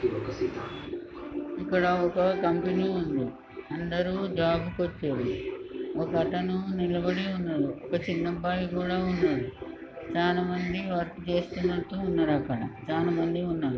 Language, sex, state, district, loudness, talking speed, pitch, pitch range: Telugu, male, Andhra Pradesh, Srikakulam, -29 LUFS, 90 wpm, 180 Hz, 170-185 Hz